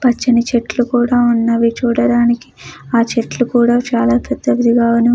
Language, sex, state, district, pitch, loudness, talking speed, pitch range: Telugu, female, Andhra Pradesh, Chittoor, 235 Hz, -14 LUFS, 115 wpm, 230-245 Hz